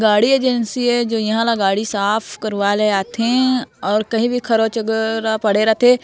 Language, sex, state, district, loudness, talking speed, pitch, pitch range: Hindi, female, Chhattisgarh, Korba, -17 LUFS, 200 wpm, 225 Hz, 210-240 Hz